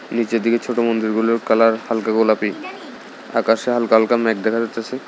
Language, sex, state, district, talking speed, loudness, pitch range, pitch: Bengali, male, Tripura, South Tripura, 155 wpm, -18 LUFS, 110-115 Hz, 115 Hz